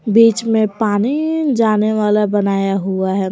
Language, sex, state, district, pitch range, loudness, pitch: Hindi, female, Jharkhand, Garhwa, 195-225 Hz, -15 LUFS, 210 Hz